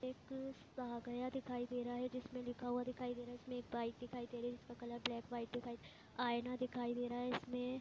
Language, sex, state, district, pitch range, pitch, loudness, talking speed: Hindi, female, Chhattisgarh, Raigarh, 240-250 Hz, 245 Hz, -45 LUFS, 245 wpm